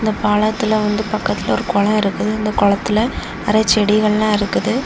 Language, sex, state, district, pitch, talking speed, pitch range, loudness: Tamil, female, Tamil Nadu, Kanyakumari, 215 Hz, 160 wpm, 210-215 Hz, -17 LUFS